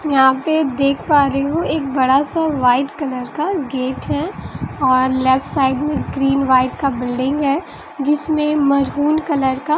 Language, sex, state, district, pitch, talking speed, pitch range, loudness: Hindi, female, Bihar, West Champaran, 275 Hz, 165 wpm, 265-295 Hz, -17 LUFS